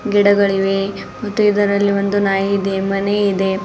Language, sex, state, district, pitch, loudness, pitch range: Kannada, female, Karnataka, Bidar, 200 Hz, -16 LUFS, 195-205 Hz